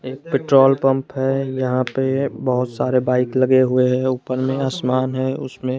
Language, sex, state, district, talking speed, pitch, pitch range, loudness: Hindi, male, Chandigarh, Chandigarh, 175 wpm, 130 Hz, 130-135 Hz, -19 LUFS